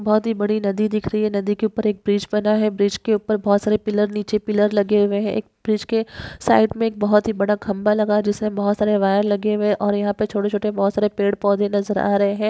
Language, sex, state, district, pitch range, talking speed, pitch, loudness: Hindi, female, Maharashtra, Dhule, 205-215 Hz, 265 wpm, 210 Hz, -20 LUFS